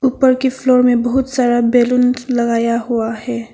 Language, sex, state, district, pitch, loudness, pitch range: Hindi, female, Arunachal Pradesh, Papum Pare, 245 Hz, -15 LUFS, 235-255 Hz